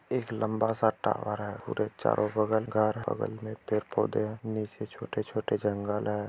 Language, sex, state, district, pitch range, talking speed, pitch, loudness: Hindi, male, Bihar, Gopalganj, 105-110 Hz, 160 wpm, 110 Hz, -31 LUFS